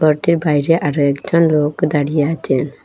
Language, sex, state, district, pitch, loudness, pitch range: Bengali, female, Assam, Hailakandi, 150 Hz, -16 LUFS, 145-165 Hz